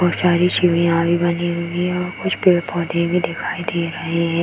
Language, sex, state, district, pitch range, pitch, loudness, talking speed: Hindi, female, Bihar, Darbhanga, 170-175 Hz, 170 Hz, -18 LUFS, 205 wpm